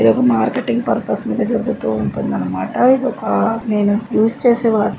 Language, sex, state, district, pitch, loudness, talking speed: Telugu, female, Andhra Pradesh, Srikakulam, 215 Hz, -17 LUFS, 120 wpm